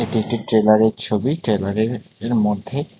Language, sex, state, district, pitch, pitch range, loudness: Bengali, male, Tripura, West Tripura, 110 Hz, 110-120 Hz, -19 LUFS